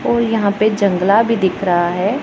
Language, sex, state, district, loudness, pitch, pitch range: Hindi, female, Punjab, Pathankot, -15 LUFS, 200 Hz, 185-220 Hz